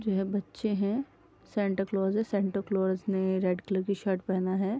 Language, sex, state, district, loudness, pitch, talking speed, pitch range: Hindi, female, Uttar Pradesh, Deoria, -30 LUFS, 195 Hz, 200 wpm, 190-205 Hz